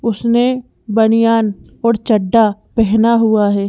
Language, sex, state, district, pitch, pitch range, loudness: Hindi, female, Madhya Pradesh, Bhopal, 225 Hz, 215-230 Hz, -14 LUFS